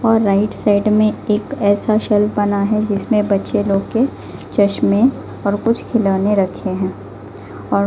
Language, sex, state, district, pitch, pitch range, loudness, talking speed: Hindi, female, Delhi, New Delhi, 205 Hz, 195-215 Hz, -17 LUFS, 150 wpm